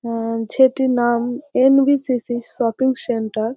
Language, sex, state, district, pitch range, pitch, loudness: Bengali, female, West Bengal, North 24 Parganas, 230-260 Hz, 245 Hz, -18 LUFS